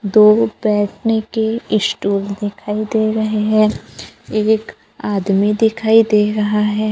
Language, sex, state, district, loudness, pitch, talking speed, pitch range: Hindi, female, Maharashtra, Gondia, -16 LUFS, 215 Hz, 120 wpm, 210-220 Hz